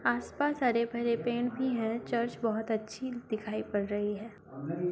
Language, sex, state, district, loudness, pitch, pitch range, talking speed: Hindi, female, Uttar Pradesh, Muzaffarnagar, -33 LUFS, 225 Hz, 205-240 Hz, 160 wpm